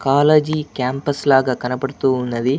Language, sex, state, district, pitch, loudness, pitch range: Telugu, male, Andhra Pradesh, Anantapur, 135 Hz, -18 LUFS, 130-145 Hz